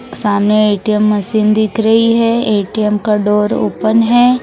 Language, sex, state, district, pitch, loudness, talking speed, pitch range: Hindi, female, Haryana, Rohtak, 215 Hz, -12 LUFS, 150 wpm, 210-225 Hz